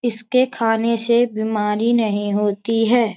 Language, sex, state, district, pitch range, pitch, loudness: Hindi, female, Bihar, Jamui, 210-235 Hz, 225 Hz, -19 LUFS